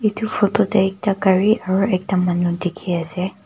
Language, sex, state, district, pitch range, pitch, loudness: Nagamese, female, Nagaland, Kohima, 180-205 Hz, 190 Hz, -19 LUFS